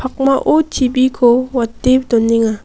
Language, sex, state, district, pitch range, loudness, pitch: Garo, female, Meghalaya, West Garo Hills, 230-260 Hz, -14 LUFS, 255 Hz